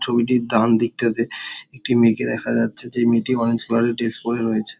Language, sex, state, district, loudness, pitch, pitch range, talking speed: Bengali, male, West Bengal, Dakshin Dinajpur, -20 LUFS, 115 Hz, 115-120 Hz, 190 wpm